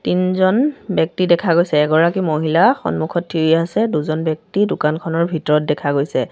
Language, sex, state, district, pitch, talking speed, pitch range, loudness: Assamese, female, Assam, Sonitpur, 165 Hz, 150 wpm, 155-185 Hz, -17 LUFS